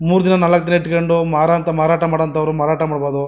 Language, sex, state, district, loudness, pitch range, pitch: Kannada, male, Karnataka, Mysore, -16 LUFS, 155-170 Hz, 165 Hz